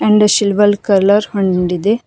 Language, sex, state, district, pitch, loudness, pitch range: Kannada, female, Karnataka, Koppal, 205 Hz, -13 LUFS, 195-210 Hz